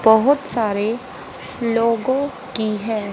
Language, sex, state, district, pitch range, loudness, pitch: Hindi, female, Haryana, Rohtak, 220-260 Hz, -20 LUFS, 230 Hz